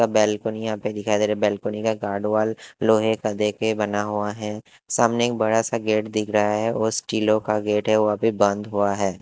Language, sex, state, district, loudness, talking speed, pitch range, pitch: Hindi, male, Haryana, Jhajjar, -22 LUFS, 235 wpm, 105-110 Hz, 110 Hz